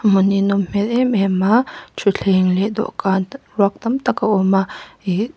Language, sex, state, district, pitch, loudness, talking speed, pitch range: Mizo, female, Mizoram, Aizawl, 200 Hz, -18 LUFS, 210 wpm, 195-225 Hz